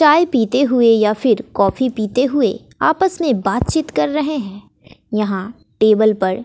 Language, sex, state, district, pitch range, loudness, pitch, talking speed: Hindi, female, Bihar, West Champaran, 210-275 Hz, -16 LUFS, 230 Hz, 160 wpm